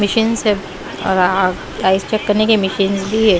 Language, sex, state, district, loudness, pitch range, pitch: Hindi, female, Punjab, Pathankot, -16 LUFS, 190-215 Hz, 200 Hz